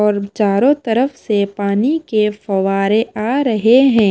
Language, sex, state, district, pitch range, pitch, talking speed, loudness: Hindi, female, Himachal Pradesh, Shimla, 200-245 Hz, 215 Hz, 145 wpm, -15 LUFS